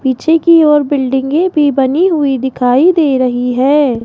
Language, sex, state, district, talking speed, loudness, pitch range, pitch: Hindi, female, Rajasthan, Jaipur, 180 wpm, -11 LUFS, 260-315 Hz, 280 Hz